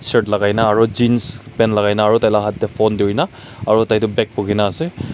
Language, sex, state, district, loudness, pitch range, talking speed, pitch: Nagamese, male, Nagaland, Kohima, -16 LUFS, 105-120 Hz, 255 wpm, 110 Hz